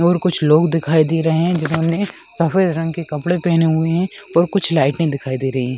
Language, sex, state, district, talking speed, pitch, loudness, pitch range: Hindi, female, Bihar, Bhagalpur, 240 wpm, 165 Hz, -17 LUFS, 155-175 Hz